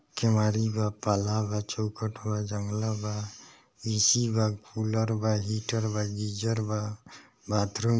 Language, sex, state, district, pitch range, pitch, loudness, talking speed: Bhojpuri, male, Bihar, East Champaran, 105-110 Hz, 110 Hz, -29 LUFS, 120 wpm